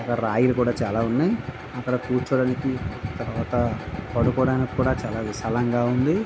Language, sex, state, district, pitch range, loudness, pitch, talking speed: Telugu, male, Andhra Pradesh, Visakhapatnam, 115-125 Hz, -24 LUFS, 120 Hz, 125 wpm